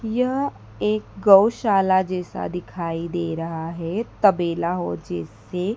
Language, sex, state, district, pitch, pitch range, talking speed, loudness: Hindi, female, Madhya Pradesh, Dhar, 175 Hz, 165-195 Hz, 115 wpm, -22 LUFS